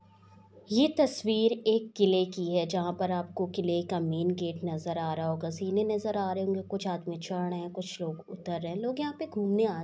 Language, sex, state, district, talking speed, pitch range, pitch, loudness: Hindi, female, Bihar, Saharsa, 220 wpm, 170-210 Hz, 185 Hz, -31 LUFS